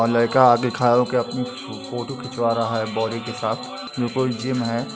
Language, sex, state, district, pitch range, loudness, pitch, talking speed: Hindi, male, Uttar Pradesh, Etah, 115-125 Hz, -22 LUFS, 120 Hz, 195 wpm